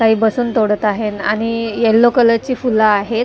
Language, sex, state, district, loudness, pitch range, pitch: Marathi, female, Maharashtra, Mumbai Suburban, -15 LUFS, 215-235 Hz, 225 Hz